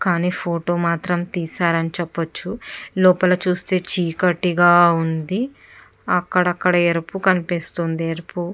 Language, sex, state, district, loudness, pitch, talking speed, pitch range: Telugu, female, Andhra Pradesh, Chittoor, -19 LUFS, 175 Hz, 100 wpm, 170-180 Hz